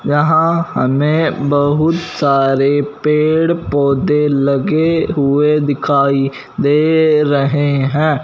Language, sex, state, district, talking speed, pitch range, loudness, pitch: Hindi, male, Punjab, Fazilka, 85 wpm, 140-155 Hz, -14 LUFS, 145 Hz